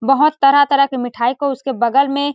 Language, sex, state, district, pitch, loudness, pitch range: Hindi, female, Chhattisgarh, Sarguja, 275 Hz, -15 LUFS, 255-280 Hz